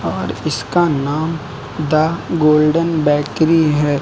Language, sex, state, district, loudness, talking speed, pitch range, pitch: Hindi, male, Uttar Pradesh, Lucknow, -16 LUFS, 105 wpm, 140-160 Hz, 150 Hz